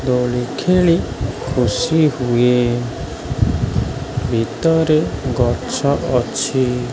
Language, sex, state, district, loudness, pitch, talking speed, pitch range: Odia, male, Odisha, Khordha, -18 LUFS, 125 Hz, 60 wpm, 120-140 Hz